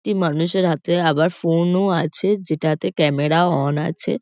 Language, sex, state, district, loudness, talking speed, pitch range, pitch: Bengali, female, West Bengal, Kolkata, -19 LUFS, 170 wpm, 155-180 Hz, 165 Hz